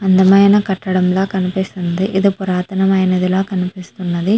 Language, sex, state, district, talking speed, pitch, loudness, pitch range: Telugu, female, Andhra Pradesh, Chittoor, 125 wpm, 190 Hz, -15 LUFS, 185-195 Hz